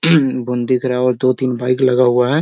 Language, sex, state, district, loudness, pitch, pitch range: Hindi, male, Bihar, Sitamarhi, -15 LUFS, 125 Hz, 125-130 Hz